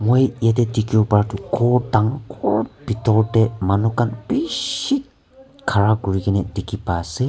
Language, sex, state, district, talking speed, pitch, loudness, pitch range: Nagamese, male, Nagaland, Kohima, 150 wpm, 110 Hz, -20 LUFS, 105-125 Hz